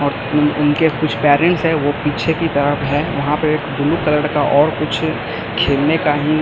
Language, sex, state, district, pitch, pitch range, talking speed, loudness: Hindi, male, Chhattisgarh, Raipur, 150 Hz, 145-155 Hz, 205 wpm, -16 LUFS